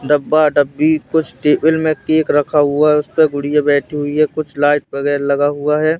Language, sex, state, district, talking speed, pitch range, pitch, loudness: Hindi, male, Madhya Pradesh, Katni, 200 wpm, 145-155 Hz, 150 Hz, -15 LUFS